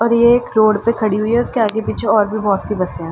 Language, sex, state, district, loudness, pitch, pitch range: Hindi, female, Uttar Pradesh, Ghazipur, -16 LUFS, 215 Hz, 210-230 Hz